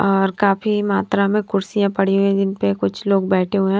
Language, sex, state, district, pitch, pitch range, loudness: Hindi, female, Haryana, Rohtak, 195 Hz, 195-200 Hz, -18 LUFS